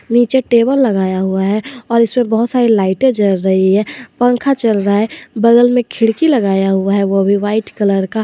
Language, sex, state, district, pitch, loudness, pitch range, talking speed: Hindi, male, Jharkhand, Garhwa, 225 Hz, -13 LUFS, 195-245 Hz, 205 wpm